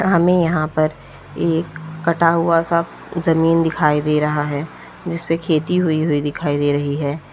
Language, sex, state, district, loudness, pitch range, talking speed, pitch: Hindi, female, Uttar Pradesh, Lalitpur, -18 LUFS, 150-170 Hz, 165 wpm, 160 Hz